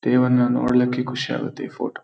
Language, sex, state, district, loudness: Kannada, male, Karnataka, Shimoga, -21 LUFS